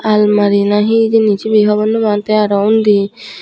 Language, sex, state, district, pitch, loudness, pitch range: Chakma, female, Tripura, Unakoti, 210 Hz, -12 LUFS, 205-220 Hz